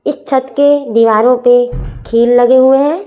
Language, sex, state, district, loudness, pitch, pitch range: Hindi, female, Chhattisgarh, Raipur, -10 LUFS, 245 Hz, 230-270 Hz